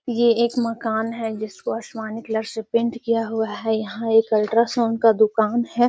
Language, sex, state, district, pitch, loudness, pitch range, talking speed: Magahi, female, Bihar, Gaya, 225 Hz, -21 LUFS, 220-235 Hz, 185 wpm